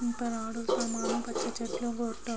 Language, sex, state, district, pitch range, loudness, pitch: Telugu, female, Andhra Pradesh, Srikakulam, 230-235 Hz, -33 LUFS, 235 Hz